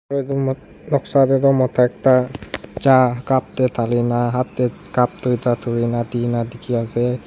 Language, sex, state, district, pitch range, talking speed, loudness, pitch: Nagamese, male, Nagaland, Dimapur, 120-130 Hz, 155 wpm, -19 LUFS, 125 Hz